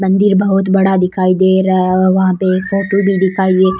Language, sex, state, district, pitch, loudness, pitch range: Rajasthani, female, Rajasthan, Churu, 190 Hz, -12 LUFS, 185-195 Hz